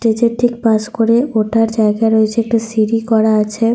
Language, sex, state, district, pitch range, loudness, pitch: Bengali, female, Jharkhand, Sahebganj, 220-230 Hz, -14 LUFS, 225 Hz